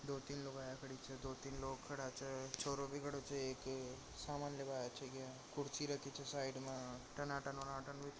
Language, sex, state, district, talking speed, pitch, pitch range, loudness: Marwari, male, Rajasthan, Nagaur, 190 wpm, 135 Hz, 130-140 Hz, -47 LUFS